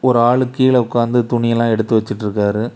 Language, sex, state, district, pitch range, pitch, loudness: Tamil, male, Tamil Nadu, Kanyakumari, 110-125 Hz, 120 Hz, -16 LUFS